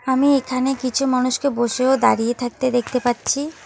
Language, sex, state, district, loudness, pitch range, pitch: Bengali, female, West Bengal, Alipurduar, -19 LUFS, 250-270 Hz, 255 Hz